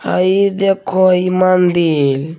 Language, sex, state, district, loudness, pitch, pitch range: Hindi, male, Bihar, Begusarai, -13 LUFS, 185 Hz, 170-190 Hz